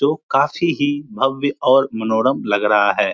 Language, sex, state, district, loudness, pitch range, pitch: Hindi, male, Bihar, Supaul, -17 LUFS, 110-145 Hz, 135 Hz